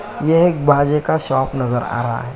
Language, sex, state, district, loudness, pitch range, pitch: Hindi, male, Uttar Pradesh, Muzaffarnagar, -17 LUFS, 125-150 Hz, 140 Hz